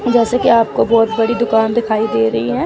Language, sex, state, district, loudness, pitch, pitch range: Hindi, female, Chandigarh, Chandigarh, -14 LUFS, 225 Hz, 220-235 Hz